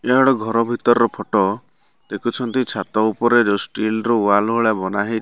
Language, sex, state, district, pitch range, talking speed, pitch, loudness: Odia, male, Odisha, Malkangiri, 105-120 Hz, 150 wpm, 115 Hz, -18 LUFS